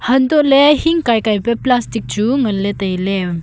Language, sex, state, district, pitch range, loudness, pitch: Wancho, female, Arunachal Pradesh, Longding, 200-270 Hz, -14 LUFS, 235 Hz